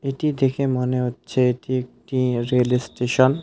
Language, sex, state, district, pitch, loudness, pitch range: Bengali, male, West Bengal, Alipurduar, 125 Hz, -22 LUFS, 125-135 Hz